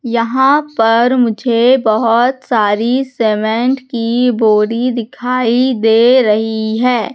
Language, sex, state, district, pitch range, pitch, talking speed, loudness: Hindi, female, Madhya Pradesh, Katni, 225-250 Hz, 235 Hz, 100 wpm, -13 LUFS